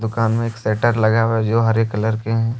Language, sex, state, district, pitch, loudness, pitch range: Hindi, male, Jharkhand, Deoghar, 115 Hz, -18 LUFS, 110-115 Hz